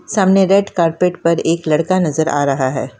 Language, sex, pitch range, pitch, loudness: Hindi, female, 150-185 Hz, 170 Hz, -15 LUFS